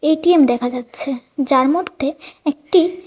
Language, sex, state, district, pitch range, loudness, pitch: Bengali, female, Tripura, West Tripura, 265-330 Hz, -16 LUFS, 295 Hz